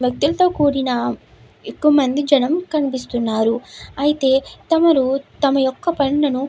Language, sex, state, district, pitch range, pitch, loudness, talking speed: Telugu, female, Andhra Pradesh, Krishna, 260-300 Hz, 275 Hz, -18 LUFS, 100 wpm